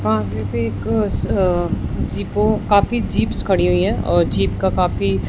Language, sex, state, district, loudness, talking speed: Hindi, male, Punjab, Fazilka, -19 LUFS, 135 wpm